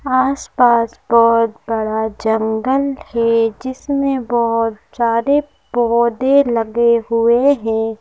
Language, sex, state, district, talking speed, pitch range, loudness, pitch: Hindi, female, Madhya Pradesh, Bhopal, 95 wpm, 225-260 Hz, -16 LUFS, 235 Hz